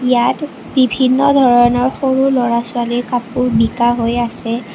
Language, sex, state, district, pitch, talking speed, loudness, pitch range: Assamese, female, Assam, Kamrup Metropolitan, 245 Hz, 125 wpm, -14 LUFS, 240-260 Hz